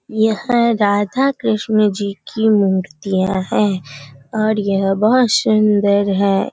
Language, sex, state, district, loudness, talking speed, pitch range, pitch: Hindi, female, Bihar, Kishanganj, -16 LUFS, 110 wpm, 195-220 Hz, 205 Hz